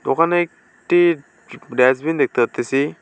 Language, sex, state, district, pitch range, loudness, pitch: Bengali, male, West Bengal, Alipurduar, 130-170 Hz, -18 LUFS, 155 Hz